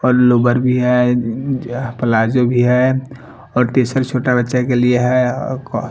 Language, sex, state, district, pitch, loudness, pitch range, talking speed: Hindi, male, Bihar, Patna, 125 Hz, -15 LUFS, 120-130 Hz, 195 wpm